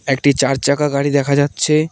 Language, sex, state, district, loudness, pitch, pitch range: Bengali, male, West Bengal, Cooch Behar, -16 LUFS, 140 Hz, 135-145 Hz